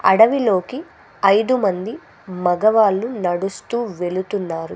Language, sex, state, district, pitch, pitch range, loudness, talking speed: Telugu, female, Andhra Pradesh, Sri Satya Sai, 195 Hz, 180-225 Hz, -18 LUFS, 75 wpm